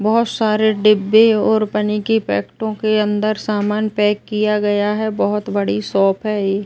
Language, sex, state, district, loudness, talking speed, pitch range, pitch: Hindi, female, Uttar Pradesh, Ghazipur, -17 LUFS, 170 wpm, 205-215 Hz, 210 Hz